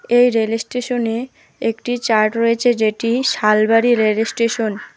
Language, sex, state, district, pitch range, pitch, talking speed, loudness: Bengali, female, West Bengal, Alipurduar, 220-240 Hz, 230 Hz, 135 wpm, -17 LUFS